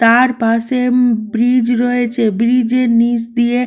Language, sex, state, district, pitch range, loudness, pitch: Bengali, female, West Bengal, Malda, 230-250 Hz, -14 LUFS, 240 Hz